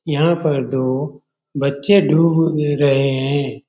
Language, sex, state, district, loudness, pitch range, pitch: Hindi, male, Bihar, Jamui, -17 LUFS, 140-155 Hz, 145 Hz